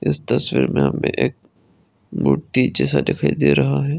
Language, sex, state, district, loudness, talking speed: Hindi, male, Arunachal Pradesh, Lower Dibang Valley, -17 LUFS, 165 wpm